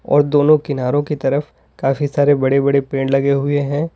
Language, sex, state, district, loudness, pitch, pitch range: Hindi, male, Uttar Pradesh, Lalitpur, -16 LUFS, 140 Hz, 135-145 Hz